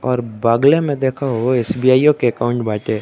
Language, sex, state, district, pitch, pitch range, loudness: Bhojpuri, male, Uttar Pradesh, Deoria, 125 Hz, 115-130 Hz, -16 LUFS